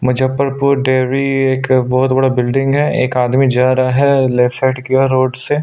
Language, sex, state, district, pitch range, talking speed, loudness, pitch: Hindi, male, Chhattisgarh, Sukma, 130-135 Hz, 180 wpm, -14 LUFS, 130 Hz